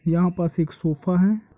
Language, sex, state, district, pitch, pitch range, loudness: Hindi, male, Andhra Pradesh, Guntur, 175 Hz, 165-180 Hz, -22 LUFS